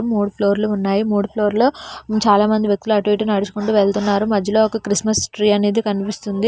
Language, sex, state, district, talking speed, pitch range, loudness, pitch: Telugu, female, Telangana, Hyderabad, 155 wpm, 205-215 Hz, -18 LUFS, 210 Hz